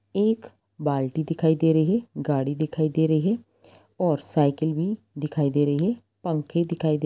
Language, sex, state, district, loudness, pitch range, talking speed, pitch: Hindi, female, Bihar, Gopalganj, -25 LUFS, 150-175 Hz, 185 wpm, 160 Hz